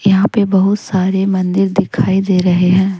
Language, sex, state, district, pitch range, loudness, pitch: Hindi, female, Jharkhand, Deoghar, 185-195 Hz, -13 LUFS, 190 Hz